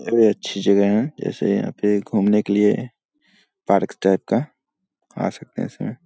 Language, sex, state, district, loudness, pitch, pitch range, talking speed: Hindi, male, Bihar, Saharsa, -20 LUFS, 100 Hz, 100-105 Hz, 180 wpm